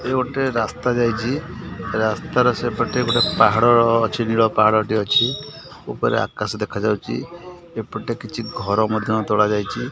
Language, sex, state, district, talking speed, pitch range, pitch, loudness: Odia, male, Odisha, Khordha, 125 wpm, 110-125 Hz, 115 Hz, -19 LUFS